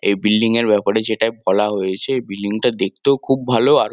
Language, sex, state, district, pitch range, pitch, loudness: Bengali, male, West Bengal, Kolkata, 100-115 Hz, 110 Hz, -17 LUFS